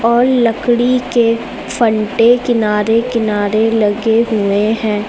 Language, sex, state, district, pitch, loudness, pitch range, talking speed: Hindi, female, Uttar Pradesh, Lucknow, 225 Hz, -13 LUFS, 215-235 Hz, 105 wpm